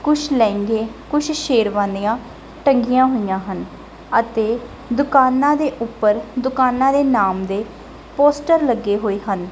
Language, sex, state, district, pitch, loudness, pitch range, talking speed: Punjabi, female, Punjab, Kapurthala, 240 Hz, -18 LUFS, 210-275 Hz, 115 wpm